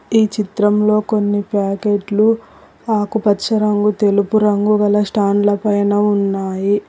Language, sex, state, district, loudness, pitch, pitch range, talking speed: Telugu, female, Telangana, Hyderabad, -16 LUFS, 205 Hz, 205-210 Hz, 115 wpm